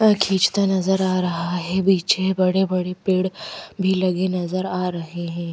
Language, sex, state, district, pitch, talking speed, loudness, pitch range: Hindi, female, Madhya Pradesh, Bhopal, 185 Hz, 175 wpm, -21 LUFS, 180-190 Hz